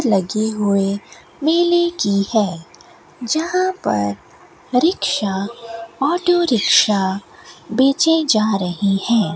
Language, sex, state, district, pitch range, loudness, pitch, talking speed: Hindi, female, Rajasthan, Bikaner, 195-310 Hz, -18 LUFS, 220 Hz, 90 wpm